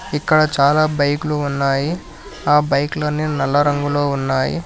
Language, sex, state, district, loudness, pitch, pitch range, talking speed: Telugu, male, Telangana, Hyderabad, -17 LUFS, 145 Hz, 140-155 Hz, 130 wpm